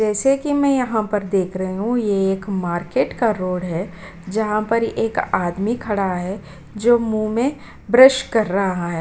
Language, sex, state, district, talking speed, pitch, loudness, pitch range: Hindi, female, Bihar, Kishanganj, 180 wpm, 210 Hz, -19 LUFS, 185-230 Hz